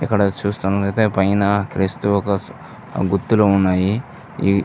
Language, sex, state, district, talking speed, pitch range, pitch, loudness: Telugu, male, Andhra Pradesh, Visakhapatnam, 115 wpm, 95-100 Hz, 100 Hz, -18 LUFS